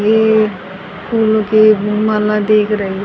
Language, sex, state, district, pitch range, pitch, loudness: Hindi, female, Haryana, Rohtak, 200-215 Hz, 210 Hz, -13 LUFS